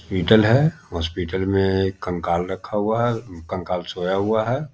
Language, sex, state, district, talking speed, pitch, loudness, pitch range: Hindi, male, Bihar, Muzaffarpur, 165 wpm, 95 Hz, -21 LUFS, 90-110 Hz